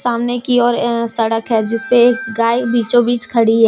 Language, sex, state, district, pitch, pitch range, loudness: Hindi, female, Jharkhand, Deoghar, 235 Hz, 225-245 Hz, -15 LUFS